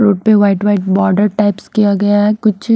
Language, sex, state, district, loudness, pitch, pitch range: Hindi, female, Bihar, Patna, -12 LUFS, 205 Hz, 200-210 Hz